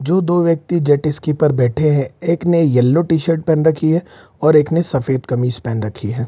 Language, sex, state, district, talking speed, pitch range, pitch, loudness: Hindi, male, Bihar, Saran, 220 wpm, 130-165 Hz, 150 Hz, -16 LUFS